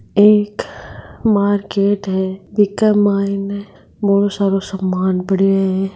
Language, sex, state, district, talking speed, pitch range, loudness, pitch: Marwari, female, Rajasthan, Nagaur, 100 wpm, 195-205 Hz, -16 LUFS, 200 Hz